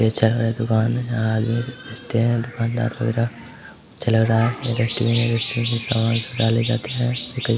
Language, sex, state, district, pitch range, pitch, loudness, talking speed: Hindi, male, Bihar, Samastipur, 115-120 Hz, 115 Hz, -21 LUFS, 55 wpm